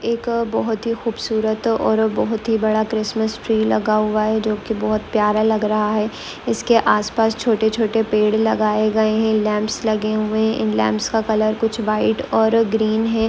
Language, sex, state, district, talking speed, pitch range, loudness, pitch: Hindi, female, West Bengal, Malda, 175 wpm, 215-225 Hz, -19 LUFS, 220 Hz